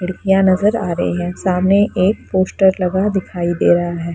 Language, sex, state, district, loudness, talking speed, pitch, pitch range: Hindi, female, Bihar, Lakhisarai, -16 LUFS, 185 wpm, 185 Hz, 175-195 Hz